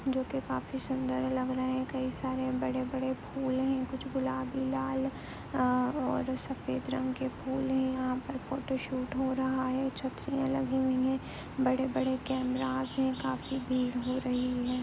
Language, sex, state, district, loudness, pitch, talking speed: Hindi, female, Uttar Pradesh, Deoria, -33 LUFS, 255 Hz, 160 wpm